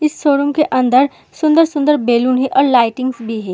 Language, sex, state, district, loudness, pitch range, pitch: Hindi, female, Uttar Pradesh, Muzaffarnagar, -14 LUFS, 245-295 Hz, 265 Hz